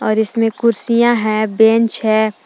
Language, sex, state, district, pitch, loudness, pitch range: Hindi, female, Jharkhand, Palamu, 220 Hz, -14 LUFS, 215-230 Hz